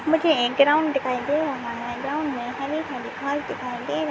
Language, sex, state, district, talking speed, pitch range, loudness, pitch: Hindi, female, Chhattisgarh, Kabirdham, 205 wpm, 250-305 Hz, -24 LUFS, 280 Hz